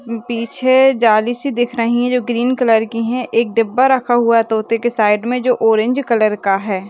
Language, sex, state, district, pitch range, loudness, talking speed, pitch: Hindi, female, Bihar, Kishanganj, 225-250 Hz, -15 LUFS, 215 wpm, 230 Hz